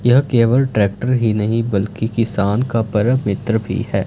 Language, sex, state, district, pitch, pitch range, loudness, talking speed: Hindi, male, Punjab, Fazilka, 115 Hz, 105-120 Hz, -17 LUFS, 175 wpm